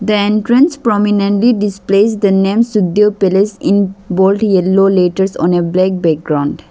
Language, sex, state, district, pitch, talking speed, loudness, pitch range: English, female, Arunachal Pradesh, Lower Dibang Valley, 195 Hz, 145 wpm, -12 LUFS, 190-210 Hz